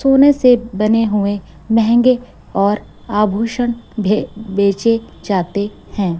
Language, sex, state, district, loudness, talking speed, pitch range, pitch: Hindi, female, Chhattisgarh, Raipur, -16 LUFS, 105 wpm, 200-235 Hz, 220 Hz